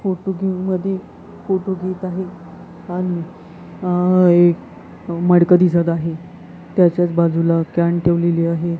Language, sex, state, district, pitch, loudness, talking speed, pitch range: Marathi, female, Maharashtra, Gondia, 175 Hz, -17 LUFS, 115 wpm, 170-185 Hz